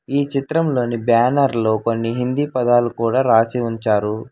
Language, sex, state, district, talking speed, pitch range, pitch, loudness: Telugu, male, Telangana, Hyderabad, 140 wpm, 115-130 Hz, 120 Hz, -18 LUFS